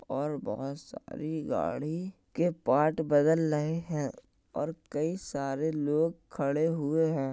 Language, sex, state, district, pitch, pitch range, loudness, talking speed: Hindi, male, Uttar Pradesh, Jalaun, 155 Hz, 145-160 Hz, -31 LUFS, 130 wpm